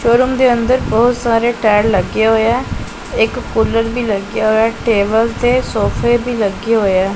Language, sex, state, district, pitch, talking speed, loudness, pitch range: Punjabi, male, Punjab, Pathankot, 230 Hz, 185 wpm, -14 LUFS, 220-240 Hz